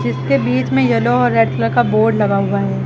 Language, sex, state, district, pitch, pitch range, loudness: Hindi, female, Uttar Pradesh, Lucknow, 120 Hz, 110-125 Hz, -15 LUFS